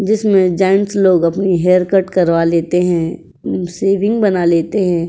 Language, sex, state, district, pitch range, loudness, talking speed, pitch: Hindi, female, Uttar Pradesh, Jyotiba Phule Nagar, 170-195 Hz, -14 LUFS, 165 wpm, 185 Hz